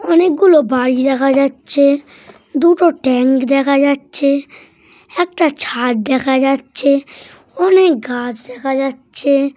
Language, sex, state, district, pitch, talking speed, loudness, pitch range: Bengali, male, West Bengal, Jhargram, 275 Hz, 105 wpm, -14 LUFS, 260-300 Hz